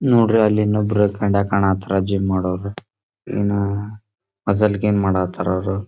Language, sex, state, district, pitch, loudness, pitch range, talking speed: Kannada, male, Karnataka, Dharwad, 100 Hz, -19 LUFS, 95-105 Hz, 120 wpm